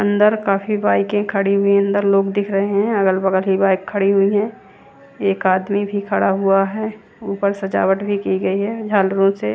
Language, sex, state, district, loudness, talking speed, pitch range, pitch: Hindi, female, Chandigarh, Chandigarh, -18 LUFS, 205 wpm, 195-205 Hz, 200 Hz